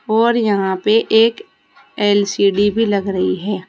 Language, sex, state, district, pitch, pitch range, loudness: Hindi, female, Uttar Pradesh, Saharanpur, 205 Hz, 200-225 Hz, -16 LUFS